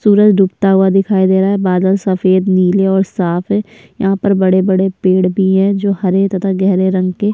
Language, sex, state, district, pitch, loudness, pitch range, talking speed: Hindi, female, Chhattisgarh, Sukma, 190 Hz, -13 LUFS, 185-200 Hz, 205 wpm